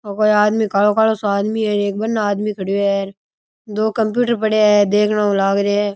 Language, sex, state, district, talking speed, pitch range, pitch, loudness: Rajasthani, male, Rajasthan, Churu, 230 wpm, 200-215 Hz, 210 Hz, -17 LUFS